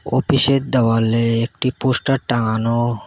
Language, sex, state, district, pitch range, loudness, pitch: Bengali, male, West Bengal, Cooch Behar, 115-130 Hz, -17 LUFS, 120 Hz